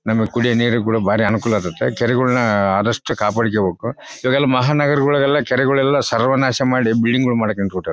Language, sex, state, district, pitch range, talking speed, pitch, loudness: Kannada, male, Karnataka, Bellary, 110-130 Hz, 130 wpm, 120 Hz, -17 LUFS